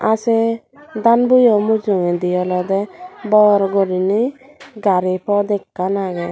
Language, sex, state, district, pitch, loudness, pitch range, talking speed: Chakma, female, Tripura, Dhalai, 205 Hz, -16 LUFS, 185-230 Hz, 115 wpm